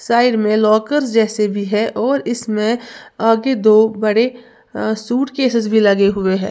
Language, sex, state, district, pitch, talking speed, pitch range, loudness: Hindi, female, Uttar Pradesh, Lalitpur, 225 Hz, 165 wpm, 215-240 Hz, -16 LUFS